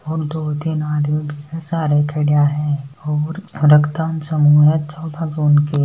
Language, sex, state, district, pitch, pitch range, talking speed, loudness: Hindi, male, Rajasthan, Nagaur, 150 Hz, 150-160 Hz, 125 wpm, -17 LUFS